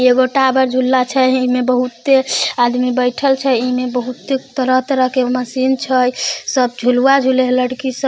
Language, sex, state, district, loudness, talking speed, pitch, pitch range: Maithili, female, Bihar, Samastipur, -15 LUFS, 180 wpm, 255 Hz, 250-265 Hz